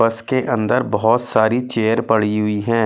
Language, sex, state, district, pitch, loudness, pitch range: Hindi, male, Delhi, New Delhi, 115 Hz, -18 LUFS, 110-120 Hz